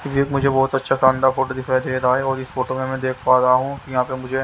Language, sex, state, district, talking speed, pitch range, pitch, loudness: Hindi, male, Haryana, Jhajjar, 325 wpm, 130-135 Hz, 130 Hz, -19 LUFS